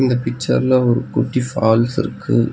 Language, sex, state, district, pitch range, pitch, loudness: Tamil, male, Tamil Nadu, Nilgiris, 115-130 Hz, 125 Hz, -17 LUFS